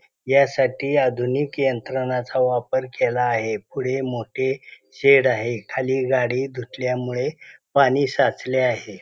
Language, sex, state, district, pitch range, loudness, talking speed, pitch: Marathi, male, Maharashtra, Pune, 125-135 Hz, -21 LUFS, 105 wpm, 130 Hz